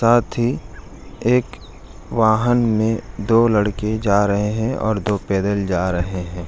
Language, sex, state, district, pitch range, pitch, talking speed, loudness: Hindi, male, Bihar, Jahanabad, 95-115 Hz, 105 Hz, 160 wpm, -19 LUFS